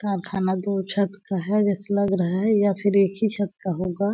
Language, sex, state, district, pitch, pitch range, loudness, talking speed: Hindi, female, Chhattisgarh, Balrampur, 200 Hz, 190-200 Hz, -23 LUFS, 230 wpm